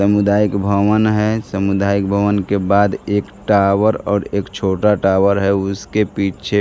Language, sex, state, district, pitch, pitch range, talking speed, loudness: Hindi, male, Bihar, Kaimur, 100 Hz, 100-105 Hz, 155 wpm, -16 LUFS